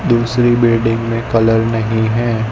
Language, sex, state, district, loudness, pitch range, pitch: Hindi, male, Gujarat, Gandhinagar, -14 LUFS, 115-120 Hz, 115 Hz